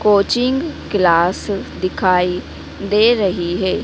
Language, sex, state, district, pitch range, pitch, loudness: Hindi, female, Madhya Pradesh, Dhar, 180-215 Hz, 195 Hz, -17 LUFS